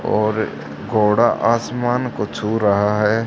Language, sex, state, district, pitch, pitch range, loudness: Hindi, male, Haryana, Charkhi Dadri, 105 Hz, 105-115 Hz, -18 LUFS